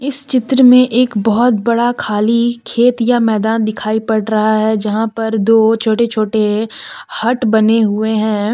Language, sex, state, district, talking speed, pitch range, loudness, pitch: Hindi, female, Jharkhand, Deoghar, 160 wpm, 215-240 Hz, -13 LUFS, 225 Hz